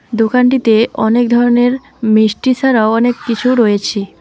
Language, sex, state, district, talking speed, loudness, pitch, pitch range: Bengali, female, West Bengal, Alipurduar, 115 wpm, -12 LUFS, 235 Hz, 220-250 Hz